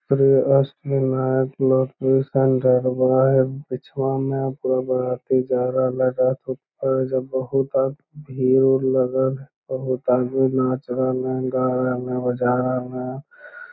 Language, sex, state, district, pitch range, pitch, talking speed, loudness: Magahi, male, Bihar, Lakhisarai, 130-135 Hz, 130 Hz, 65 wpm, -21 LUFS